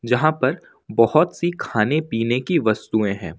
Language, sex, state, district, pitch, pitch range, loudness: Hindi, male, Jharkhand, Ranchi, 130 Hz, 115-160 Hz, -20 LUFS